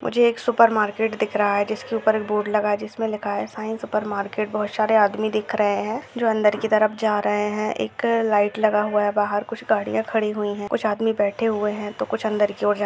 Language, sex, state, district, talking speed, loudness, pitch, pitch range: Hindi, male, Maharashtra, Solapur, 250 wpm, -22 LUFS, 215 Hz, 210-220 Hz